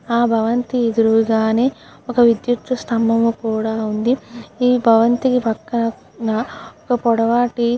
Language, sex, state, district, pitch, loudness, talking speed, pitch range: Telugu, female, Andhra Pradesh, Krishna, 230 Hz, -17 LUFS, 110 wpm, 225-245 Hz